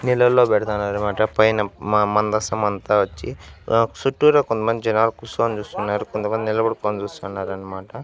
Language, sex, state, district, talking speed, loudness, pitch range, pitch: Telugu, male, Andhra Pradesh, Annamaya, 110 wpm, -20 LUFS, 105-115 Hz, 110 Hz